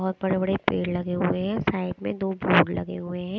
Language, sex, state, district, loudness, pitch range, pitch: Hindi, female, Chandigarh, Chandigarh, -25 LUFS, 175-190 Hz, 185 Hz